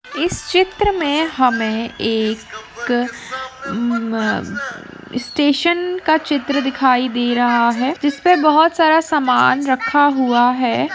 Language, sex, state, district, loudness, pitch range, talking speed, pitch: Hindi, female, Rajasthan, Churu, -16 LUFS, 240-310 Hz, 120 wpm, 260 Hz